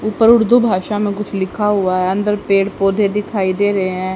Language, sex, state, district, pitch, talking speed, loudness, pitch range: Hindi, female, Haryana, Charkhi Dadri, 205 Hz, 215 wpm, -15 LUFS, 190-210 Hz